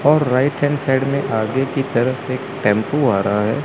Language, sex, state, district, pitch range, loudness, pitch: Hindi, male, Chandigarh, Chandigarh, 115-140 Hz, -18 LUFS, 135 Hz